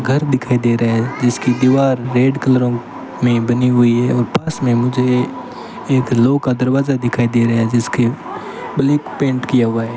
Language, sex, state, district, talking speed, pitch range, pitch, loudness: Hindi, male, Rajasthan, Bikaner, 185 wpm, 120-130 Hz, 125 Hz, -15 LUFS